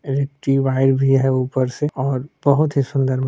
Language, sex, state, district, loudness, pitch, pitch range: Hindi, male, Bihar, Supaul, -19 LUFS, 135 Hz, 130-140 Hz